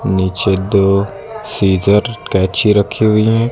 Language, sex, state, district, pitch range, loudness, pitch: Hindi, male, Uttar Pradesh, Lucknow, 95-110 Hz, -14 LUFS, 105 Hz